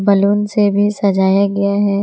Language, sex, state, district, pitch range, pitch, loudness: Hindi, female, Jharkhand, Ranchi, 200-205 Hz, 200 Hz, -14 LUFS